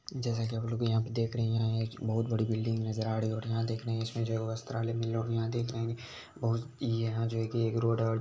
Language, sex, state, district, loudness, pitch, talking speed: Hindi, male, Bihar, Begusarai, -33 LUFS, 115 Hz, 315 wpm